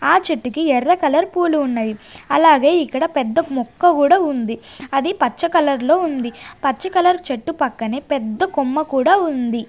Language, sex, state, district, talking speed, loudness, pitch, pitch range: Telugu, female, Andhra Pradesh, Sri Satya Sai, 155 wpm, -17 LUFS, 295 Hz, 260-340 Hz